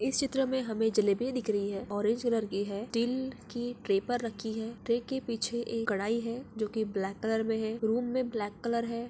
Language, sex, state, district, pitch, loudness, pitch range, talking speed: Hindi, female, Bihar, Jamui, 225 Hz, -32 LUFS, 215-240 Hz, 230 wpm